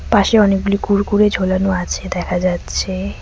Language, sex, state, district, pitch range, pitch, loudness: Bengali, female, West Bengal, Cooch Behar, 185-205 Hz, 195 Hz, -16 LUFS